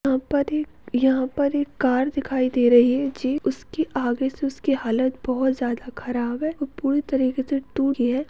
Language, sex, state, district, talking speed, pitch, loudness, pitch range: Hindi, female, Chhattisgarh, Bastar, 200 wpm, 265 Hz, -23 LUFS, 255-280 Hz